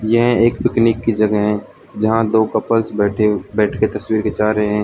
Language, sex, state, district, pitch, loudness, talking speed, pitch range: Hindi, male, Arunachal Pradesh, Lower Dibang Valley, 110 Hz, -16 LUFS, 200 wpm, 105-115 Hz